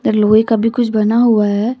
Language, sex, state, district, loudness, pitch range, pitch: Hindi, female, Jharkhand, Deoghar, -13 LUFS, 215-230 Hz, 220 Hz